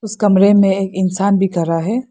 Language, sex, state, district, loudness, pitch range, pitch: Hindi, female, Arunachal Pradesh, Lower Dibang Valley, -14 LUFS, 190-205 Hz, 195 Hz